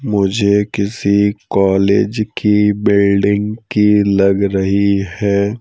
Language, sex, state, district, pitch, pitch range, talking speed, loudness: Hindi, male, Madhya Pradesh, Bhopal, 100 Hz, 100-105 Hz, 95 wpm, -14 LUFS